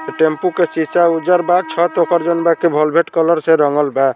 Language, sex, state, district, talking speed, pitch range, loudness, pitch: Bhojpuri, male, Bihar, Saran, 230 wpm, 160-175 Hz, -14 LUFS, 170 Hz